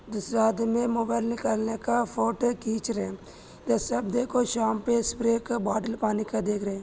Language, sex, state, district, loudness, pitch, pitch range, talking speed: Hindi, male, Maharashtra, Sindhudurg, -27 LUFS, 230 Hz, 220-235 Hz, 165 wpm